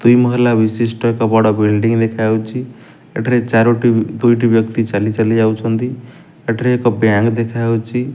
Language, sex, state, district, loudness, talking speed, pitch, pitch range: Odia, male, Odisha, Nuapada, -15 LUFS, 125 wpm, 115 Hz, 110-120 Hz